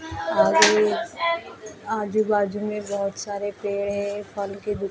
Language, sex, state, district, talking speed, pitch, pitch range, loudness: Hindi, female, Maharashtra, Mumbai Suburban, 135 wpm, 205 Hz, 200-215 Hz, -23 LUFS